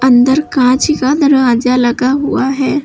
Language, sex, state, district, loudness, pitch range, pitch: Hindi, female, Uttar Pradesh, Lucknow, -11 LUFS, 250-285 Hz, 265 Hz